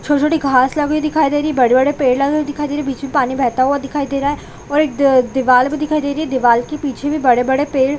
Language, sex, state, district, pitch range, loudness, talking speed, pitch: Hindi, female, Chhattisgarh, Bilaspur, 260-295 Hz, -16 LUFS, 300 wpm, 280 Hz